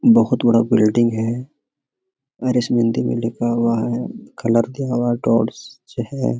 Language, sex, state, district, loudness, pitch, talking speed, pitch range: Hindi, male, Jharkhand, Sahebganj, -19 LUFS, 120 Hz, 160 wpm, 115-125 Hz